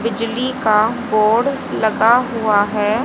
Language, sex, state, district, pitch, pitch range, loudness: Hindi, female, Haryana, Rohtak, 225 Hz, 215-245 Hz, -16 LUFS